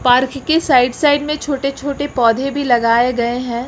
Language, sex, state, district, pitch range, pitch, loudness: Hindi, female, Uttar Pradesh, Lucknow, 245-285 Hz, 265 Hz, -16 LUFS